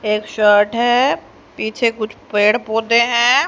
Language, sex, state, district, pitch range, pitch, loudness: Hindi, female, Haryana, Jhajjar, 210-240 Hz, 225 Hz, -16 LUFS